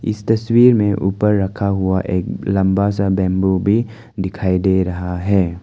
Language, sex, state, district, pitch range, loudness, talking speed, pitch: Hindi, male, Arunachal Pradesh, Longding, 95-105 Hz, -17 LUFS, 160 wpm, 95 Hz